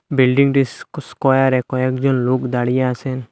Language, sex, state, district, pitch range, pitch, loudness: Bengali, male, Assam, Hailakandi, 130-135 Hz, 130 Hz, -17 LUFS